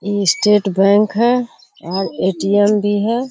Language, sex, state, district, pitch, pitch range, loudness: Hindi, female, Bihar, Kishanganj, 205 Hz, 195-220 Hz, -15 LUFS